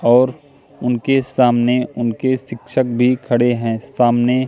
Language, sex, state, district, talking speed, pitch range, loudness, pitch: Hindi, male, Madhya Pradesh, Katni, 120 wpm, 120-130 Hz, -17 LUFS, 125 Hz